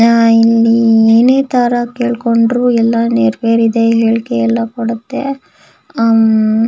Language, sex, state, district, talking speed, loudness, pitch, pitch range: Kannada, female, Karnataka, Shimoga, 115 wpm, -11 LUFS, 230 Hz, 230-240 Hz